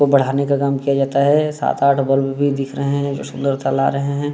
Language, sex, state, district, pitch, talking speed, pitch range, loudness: Hindi, male, Bihar, Muzaffarpur, 140 Hz, 250 wpm, 135-140 Hz, -18 LUFS